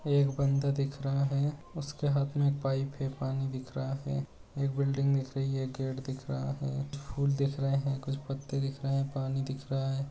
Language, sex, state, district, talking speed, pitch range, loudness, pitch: Hindi, male, Uttar Pradesh, Budaun, 220 wpm, 135-140 Hz, -32 LUFS, 135 Hz